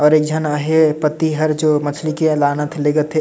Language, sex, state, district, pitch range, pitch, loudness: Sadri, male, Chhattisgarh, Jashpur, 150-155 Hz, 155 Hz, -16 LUFS